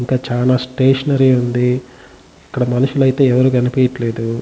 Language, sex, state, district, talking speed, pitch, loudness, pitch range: Telugu, male, Andhra Pradesh, Chittoor, 110 wpm, 125 Hz, -15 LUFS, 125-130 Hz